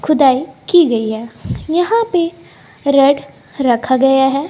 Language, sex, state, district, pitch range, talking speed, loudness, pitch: Hindi, female, Bihar, West Champaran, 260-330 Hz, 135 wpm, -14 LUFS, 275 Hz